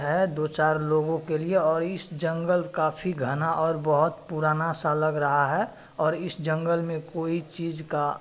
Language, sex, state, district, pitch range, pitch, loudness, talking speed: Hindi, male, Bihar, Madhepura, 155-170 Hz, 160 Hz, -26 LUFS, 185 wpm